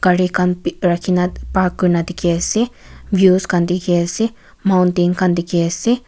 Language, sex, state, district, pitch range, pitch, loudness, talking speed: Nagamese, female, Nagaland, Kohima, 175-185 Hz, 180 Hz, -17 LUFS, 160 wpm